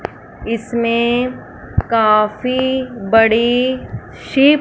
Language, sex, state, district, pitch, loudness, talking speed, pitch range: Hindi, female, Punjab, Fazilka, 235 Hz, -16 LUFS, 50 wpm, 225-255 Hz